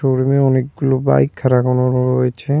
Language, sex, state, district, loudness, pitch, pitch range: Bengali, male, West Bengal, Cooch Behar, -16 LUFS, 130 Hz, 125-135 Hz